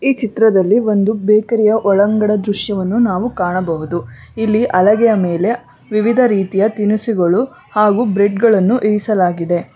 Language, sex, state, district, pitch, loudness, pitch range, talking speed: Kannada, female, Karnataka, Bangalore, 210 Hz, -14 LUFS, 190-225 Hz, 115 wpm